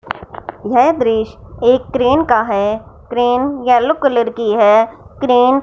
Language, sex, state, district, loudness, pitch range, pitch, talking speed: Hindi, female, Punjab, Fazilka, -14 LUFS, 225-260 Hz, 245 Hz, 140 wpm